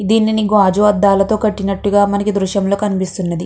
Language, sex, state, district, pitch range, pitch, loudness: Telugu, female, Andhra Pradesh, Chittoor, 195-210 Hz, 200 Hz, -14 LUFS